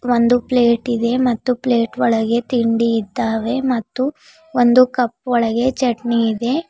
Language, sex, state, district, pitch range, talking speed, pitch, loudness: Kannada, female, Karnataka, Bidar, 230-255 Hz, 125 wpm, 240 Hz, -17 LUFS